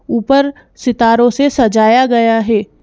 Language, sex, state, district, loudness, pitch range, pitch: Hindi, female, Madhya Pradesh, Bhopal, -12 LUFS, 225-260 Hz, 235 Hz